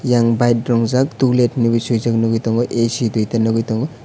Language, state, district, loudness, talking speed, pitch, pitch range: Kokborok, Tripura, West Tripura, -17 LUFS, 175 wpm, 115 Hz, 115-120 Hz